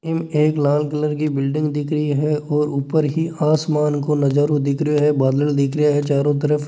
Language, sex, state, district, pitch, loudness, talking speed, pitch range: Marwari, male, Rajasthan, Nagaur, 150 Hz, -19 LUFS, 205 wpm, 145-150 Hz